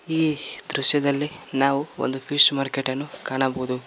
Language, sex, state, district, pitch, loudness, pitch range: Kannada, male, Karnataka, Koppal, 140 Hz, -20 LUFS, 135-145 Hz